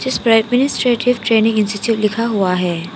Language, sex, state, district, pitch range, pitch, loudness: Hindi, female, Arunachal Pradesh, Papum Pare, 205-245 Hz, 225 Hz, -15 LUFS